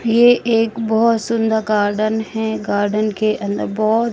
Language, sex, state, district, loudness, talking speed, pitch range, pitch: Hindi, female, Madhya Pradesh, Katni, -17 LUFS, 145 wpm, 215-230 Hz, 220 Hz